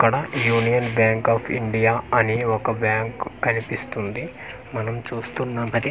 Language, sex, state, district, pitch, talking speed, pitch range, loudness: Telugu, male, Andhra Pradesh, Manyam, 115 Hz, 130 wpm, 115-125 Hz, -22 LUFS